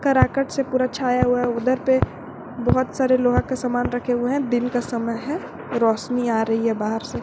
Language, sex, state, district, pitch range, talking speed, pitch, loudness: Hindi, female, Jharkhand, Garhwa, 235-260 Hz, 215 wpm, 245 Hz, -22 LUFS